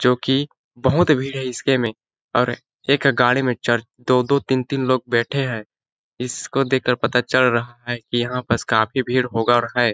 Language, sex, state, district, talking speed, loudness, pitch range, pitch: Hindi, male, Chhattisgarh, Balrampur, 185 wpm, -20 LUFS, 120-135 Hz, 125 Hz